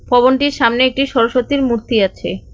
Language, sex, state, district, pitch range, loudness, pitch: Bengali, female, West Bengal, Cooch Behar, 230-270 Hz, -15 LUFS, 250 Hz